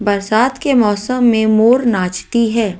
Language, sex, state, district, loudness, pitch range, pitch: Hindi, female, Rajasthan, Jaipur, -14 LUFS, 205-240 Hz, 225 Hz